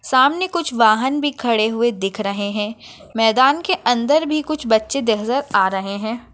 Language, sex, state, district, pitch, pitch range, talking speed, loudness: Hindi, female, Maharashtra, Nagpur, 235 Hz, 215-285 Hz, 180 wpm, -18 LUFS